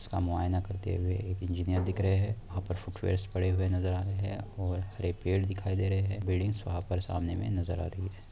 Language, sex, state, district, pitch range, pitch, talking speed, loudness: Hindi, male, Bihar, Saharsa, 90-95 Hz, 95 Hz, 260 wpm, -33 LUFS